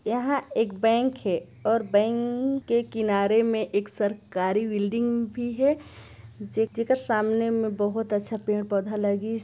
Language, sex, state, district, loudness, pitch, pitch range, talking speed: Hindi, female, Chhattisgarh, Sarguja, -26 LUFS, 220 Hz, 205-235 Hz, 145 wpm